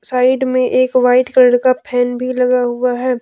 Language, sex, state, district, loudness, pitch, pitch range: Hindi, female, Jharkhand, Deoghar, -14 LUFS, 250 Hz, 250-255 Hz